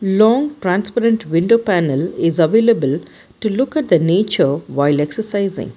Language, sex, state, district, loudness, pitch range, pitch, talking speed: English, female, Karnataka, Bangalore, -16 LUFS, 170-225 Hz, 200 Hz, 135 wpm